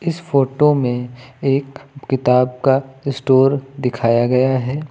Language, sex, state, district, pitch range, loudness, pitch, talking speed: Hindi, male, Uttar Pradesh, Lucknow, 125-140 Hz, -17 LUFS, 135 Hz, 120 wpm